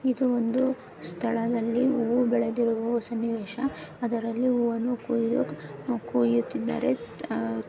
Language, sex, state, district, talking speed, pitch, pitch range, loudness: Kannada, female, Karnataka, Bellary, 85 wpm, 235 Hz, 230-245 Hz, -27 LUFS